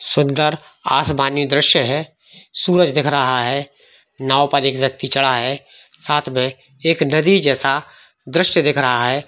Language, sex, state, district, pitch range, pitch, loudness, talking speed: Hindi, male, Jharkhand, Jamtara, 135-150 Hz, 140 Hz, -17 LUFS, 140 wpm